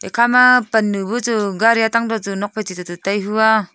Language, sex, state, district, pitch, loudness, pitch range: Wancho, female, Arunachal Pradesh, Longding, 220 Hz, -16 LUFS, 200-230 Hz